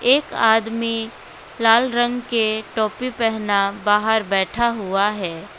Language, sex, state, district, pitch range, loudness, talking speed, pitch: Hindi, female, West Bengal, Alipurduar, 205-235 Hz, -19 LUFS, 120 wpm, 225 Hz